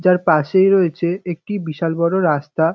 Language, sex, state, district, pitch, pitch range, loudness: Bengali, male, West Bengal, North 24 Parganas, 170 Hz, 160-190 Hz, -17 LUFS